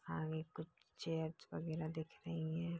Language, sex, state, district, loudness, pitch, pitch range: Hindi, female, Bihar, Begusarai, -45 LUFS, 160 Hz, 160-165 Hz